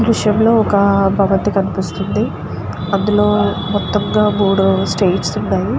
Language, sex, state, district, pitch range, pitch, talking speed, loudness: Telugu, female, Andhra Pradesh, Guntur, 190-210 Hz, 200 Hz, 115 wpm, -15 LUFS